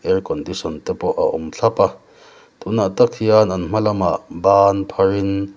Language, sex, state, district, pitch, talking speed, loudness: Mizo, male, Mizoram, Aizawl, 110 Hz, 195 wpm, -18 LUFS